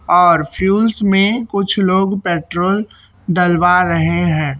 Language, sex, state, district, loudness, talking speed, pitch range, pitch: Hindi, male, Chhattisgarh, Raipur, -14 LUFS, 115 wpm, 175-200 Hz, 180 Hz